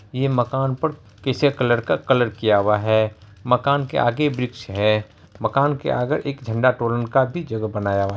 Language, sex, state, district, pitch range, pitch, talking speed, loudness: Hindi, male, Bihar, Araria, 105-135 Hz, 120 Hz, 190 wpm, -21 LUFS